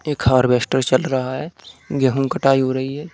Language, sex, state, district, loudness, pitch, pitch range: Hindi, male, Uttar Pradesh, Budaun, -18 LUFS, 130 Hz, 130-145 Hz